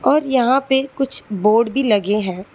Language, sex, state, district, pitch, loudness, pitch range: Hindi, female, Telangana, Hyderabad, 245 Hz, -17 LUFS, 210-270 Hz